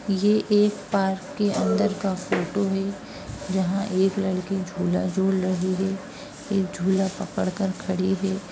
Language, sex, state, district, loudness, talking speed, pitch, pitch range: Hindi, female, Bihar, Darbhanga, -24 LUFS, 150 wpm, 195 Hz, 185-200 Hz